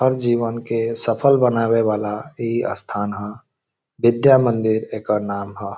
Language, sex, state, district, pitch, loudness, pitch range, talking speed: Bhojpuri, male, Bihar, Saran, 115 Hz, -19 LUFS, 105-120 Hz, 145 wpm